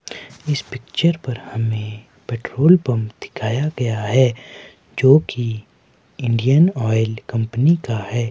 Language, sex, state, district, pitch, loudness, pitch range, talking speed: Hindi, male, Himachal Pradesh, Shimla, 120 Hz, -19 LUFS, 110-140 Hz, 110 wpm